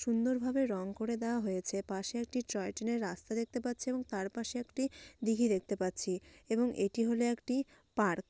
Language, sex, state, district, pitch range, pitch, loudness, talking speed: Bengali, female, West Bengal, Dakshin Dinajpur, 200-245 Hz, 230 Hz, -36 LUFS, 200 wpm